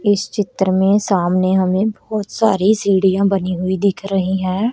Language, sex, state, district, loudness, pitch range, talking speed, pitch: Hindi, female, Haryana, Rohtak, -17 LUFS, 190-205 Hz, 165 wpm, 195 Hz